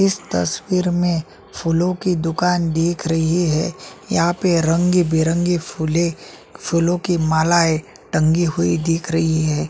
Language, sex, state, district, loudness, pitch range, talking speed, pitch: Hindi, male, Chhattisgarh, Sukma, -19 LUFS, 160-175 Hz, 130 wpm, 165 Hz